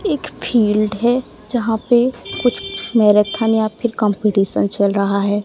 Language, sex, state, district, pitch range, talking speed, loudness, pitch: Hindi, female, Odisha, Sambalpur, 210-240 Hz, 145 wpm, -17 LUFS, 215 Hz